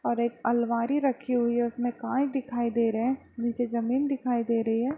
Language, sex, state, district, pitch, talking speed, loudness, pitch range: Hindi, female, Bihar, Bhagalpur, 240 Hz, 215 wpm, -28 LUFS, 235-255 Hz